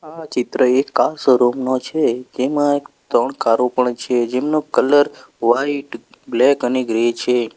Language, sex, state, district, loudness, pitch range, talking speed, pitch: Gujarati, male, Gujarat, Valsad, -18 LUFS, 125-145 Hz, 160 wpm, 130 Hz